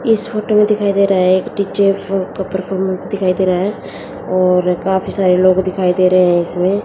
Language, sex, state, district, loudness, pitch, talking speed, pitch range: Hindi, female, Haryana, Jhajjar, -15 LUFS, 190 Hz, 210 wpm, 185-200 Hz